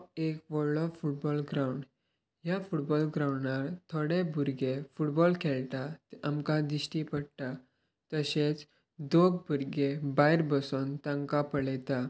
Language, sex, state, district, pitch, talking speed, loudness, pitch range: Konkani, male, Goa, North and South Goa, 145 Hz, 110 wpm, -32 LUFS, 140-155 Hz